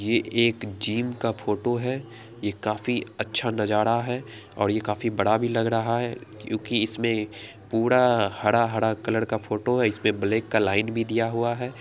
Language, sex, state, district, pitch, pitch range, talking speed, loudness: Angika, female, Bihar, Araria, 110 Hz, 105-115 Hz, 180 wpm, -25 LUFS